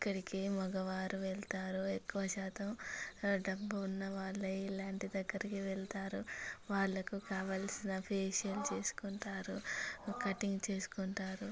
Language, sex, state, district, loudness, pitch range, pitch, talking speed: Telugu, female, Andhra Pradesh, Guntur, -40 LUFS, 190-200 Hz, 195 Hz, 80 wpm